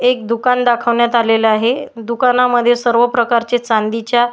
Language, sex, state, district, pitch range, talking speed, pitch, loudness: Marathi, female, Maharashtra, Washim, 230-245 Hz, 140 wpm, 240 Hz, -14 LUFS